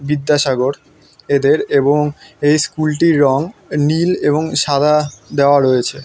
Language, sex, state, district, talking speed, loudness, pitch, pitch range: Bengali, male, West Bengal, North 24 Parganas, 120 wpm, -15 LUFS, 145 Hz, 140-150 Hz